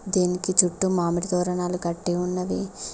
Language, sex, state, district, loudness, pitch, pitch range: Telugu, female, Telangana, Mahabubabad, -24 LUFS, 180 Hz, 175-180 Hz